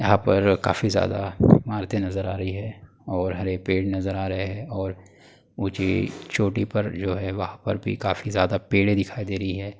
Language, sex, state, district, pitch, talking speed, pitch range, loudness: Hindi, male, Uttar Pradesh, Hamirpur, 100 Hz, 195 wpm, 95-105 Hz, -24 LUFS